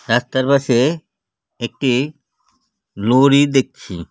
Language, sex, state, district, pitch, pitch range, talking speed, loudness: Bengali, male, West Bengal, Cooch Behar, 135 Hz, 120-150 Hz, 85 wpm, -16 LUFS